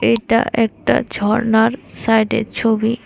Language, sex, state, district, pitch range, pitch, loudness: Bengali, female, Tripura, West Tripura, 220-230 Hz, 225 Hz, -17 LUFS